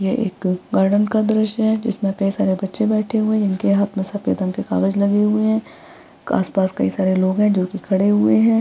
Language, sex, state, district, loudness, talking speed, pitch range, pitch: Hindi, female, Bihar, Vaishali, -18 LUFS, 230 wpm, 190-215 Hz, 200 Hz